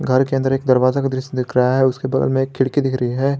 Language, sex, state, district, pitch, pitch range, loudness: Hindi, male, Jharkhand, Garhwa, 130 Hz, 130-135 Hz, -18 LUFS